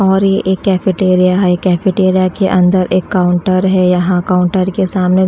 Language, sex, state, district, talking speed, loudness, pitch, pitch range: Hindi, female, Delhi, New Delhi, 180 wpm, -12 LUFS, 185 Hz, 180-190 Hz